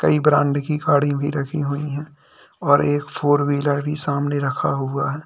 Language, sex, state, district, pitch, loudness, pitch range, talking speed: Hindi, male, Uttar Pradesh, Lalitpur, 145 Hz, -20 LUFS, 140-150 Hz, 195 wpm